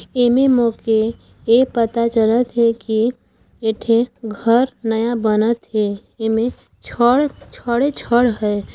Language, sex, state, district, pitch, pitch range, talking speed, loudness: Chhattisgarhi, female, Chhattisgarh, Sarguja, 230 Hz, 220-245 Hz, 115 wpm, -17 LUFS